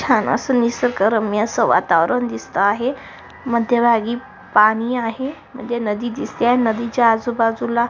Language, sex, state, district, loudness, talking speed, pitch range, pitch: Marathi, female, Maharashtra, Sindhudurg, -18 LUFS, 135 wpm, 225-245 Hz, 235 Hz